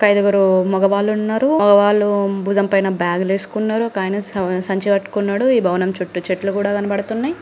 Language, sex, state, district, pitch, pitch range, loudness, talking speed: Telugu, female, Andhra Pradesh, Srikakulam, 200 Hz, 190-210 Hz, -17 LUFS, 135 wpm